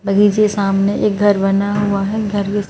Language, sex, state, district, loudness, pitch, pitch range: Hindi, male, Madhya Pradesh, Bhopal, -16 LUFS, 205 Hz, 195-205 Hz